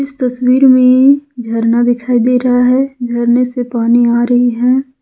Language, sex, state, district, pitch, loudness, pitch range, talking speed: Hindi, female, Jharkhand, Ranchi, 250 Hz, -11 LUFS, 240-255 Hz, 155 wpm